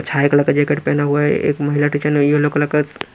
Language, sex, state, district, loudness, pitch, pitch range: Hindi, male, Punjab, Pathankot, -16 LUFS, 145 Hz, 145-150 Hz